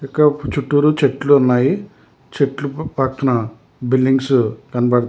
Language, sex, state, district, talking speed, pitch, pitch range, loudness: Telugu, male, Telangana, Hyderabad, 95 wpm, 135 Hz, 125-145 Hz, -17 LUFS